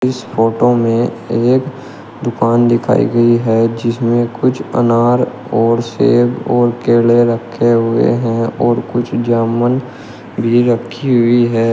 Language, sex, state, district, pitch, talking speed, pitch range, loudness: Hindi, male, Uttar Pradesh, Shamli, 120 Hz, 130 wpm, 115-120 Hz, -13 LUFS